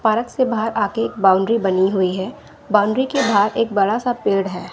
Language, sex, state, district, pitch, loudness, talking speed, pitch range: Hindi, female, Bihar, West Champaran, 215 Hz, -18 LUFS, 215 wpm, 195-230 Hz